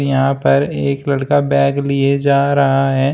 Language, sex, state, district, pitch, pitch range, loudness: Hindi, male, Uttar Pradesh, Shamli, 135 Hz, 135-140 Hz, -15 LUFS